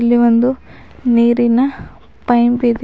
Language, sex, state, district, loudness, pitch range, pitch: Kannada, female, Karnataka, Bidar, -14 LUFS, 235-245 Hz, 240 Hz